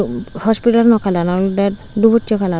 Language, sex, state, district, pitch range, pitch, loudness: Chakma, female, Tripura, Unakoti, 195-225 Hz, 210 Hz, -15 LUFS